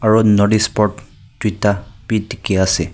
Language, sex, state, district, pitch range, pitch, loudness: Nagamese, male, Nagaland, Kohima, 100-110 Hz, 105 Hz, -16 LUFS